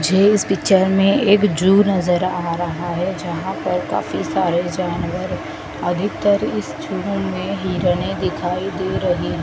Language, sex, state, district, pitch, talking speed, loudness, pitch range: Hindi, female, Madhya Pradesh, Dhar, 185 Hz, 145 wpm, -19 LUFS, 175-195 Hz